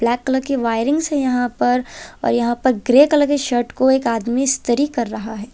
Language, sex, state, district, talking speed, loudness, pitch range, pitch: Hindi, female, Punjab, Kapurthala, 230 wpm, -18 LUFS, 235-275 Hz, 250 Hz